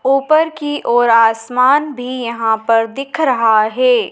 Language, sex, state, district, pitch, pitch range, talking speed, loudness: Hindi, female, Madhya Pradesh, Dhar, 250 Hz, 225-295 Hz, 145 wpm, -14 LUFS